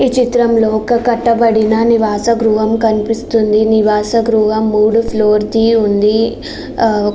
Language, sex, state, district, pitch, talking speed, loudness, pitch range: Telugu, female, Andhra Pradesh, Srikakulam, 225 Hz, 125 wpm, -12 LUFS, 215-230 Hz